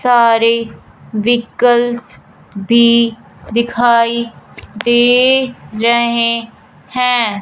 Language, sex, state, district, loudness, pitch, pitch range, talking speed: Hindi, female, Punjab, Fazilka, -13 LUFS, 235 Hz, 230-240 Hz, 55 wpm